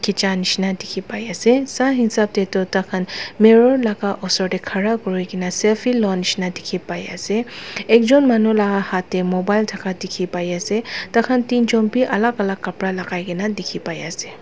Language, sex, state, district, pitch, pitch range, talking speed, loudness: Nagamese, female, Nagaland, Dimapur, 200 Hz, 185-225 Hz, 170 wpm, -19 LUFS